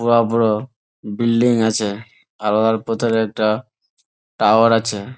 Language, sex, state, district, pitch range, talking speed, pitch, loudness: Bengali, male, West Bengal, Malda, 110-115 Hz, 115 wpm, 110 Hz, -18 LUFS